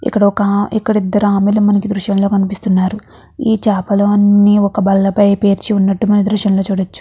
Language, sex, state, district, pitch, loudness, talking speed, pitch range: Telugu, female, Andhra Pradesh, Guntur, 205 Hz, -13 LUFS, 195 wpm, 195-205 Hz